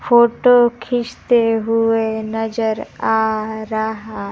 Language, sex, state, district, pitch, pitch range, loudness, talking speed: Hindi, female, Bihar, Kaimur, 225 Hz, 220-235 Hz, -17 LUFS, 85 wpm